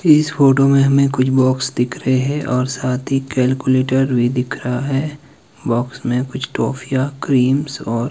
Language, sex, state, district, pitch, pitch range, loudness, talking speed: Hindi, male, Himachal Pradesh, Shimla, 130 Hz, 125-140 Hz, -17 LUFS, 170 wpm